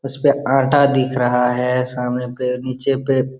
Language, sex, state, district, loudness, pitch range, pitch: Hindi, male, Bihar, Jamui, -18 LUFS, 125-135 Hz, 130 Hz